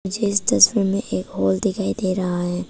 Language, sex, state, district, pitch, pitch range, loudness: Hindi, female, Arunachal Pradesh, Papum Pare, 190 Hz, 175-200 Hz, -20 LUFS